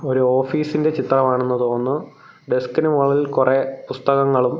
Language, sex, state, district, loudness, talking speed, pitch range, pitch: Malayalam, male, Kerala, Thiruvananthapuram, -19 LUFS, 105 wpm, 130-140 Hz, 135 Hz